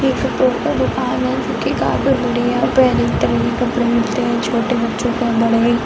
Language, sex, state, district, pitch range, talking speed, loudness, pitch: Hindi, female, Bihar, Sitamarhi, 235-245 Hz, 165 wpm, -17 LUFS, 240 Hz